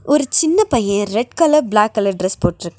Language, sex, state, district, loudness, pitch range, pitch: Tamil, female, Tamil Nadu, Nilgiris, -16 LUFS, 195-295 Hz, 215 Hz